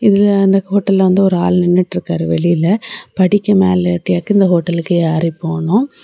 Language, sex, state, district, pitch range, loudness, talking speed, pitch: Tamil, female, Tamil Nadu, Kanyakumari, 170-195 Hz, -14 LUFS, 160 wpm, 185 Hz